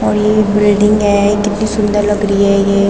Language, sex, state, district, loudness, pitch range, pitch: Hindi, female, Uttarakhand, Tehri Garhwal, -12 LUFS, 200-210 Hz, 205 Hz